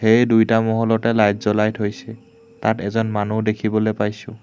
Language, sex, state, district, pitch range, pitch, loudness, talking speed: Assamese, male, Assam, Hailakandi, 105-115 Hz, 110 Hz, -19 LUFS, 150 wpm